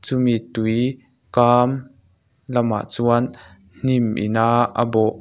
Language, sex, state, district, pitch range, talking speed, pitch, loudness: Mizo, male, Mizoram, Aizawl, 110-125 Hz, 115 wpm, 120 Hz, -19 LUFS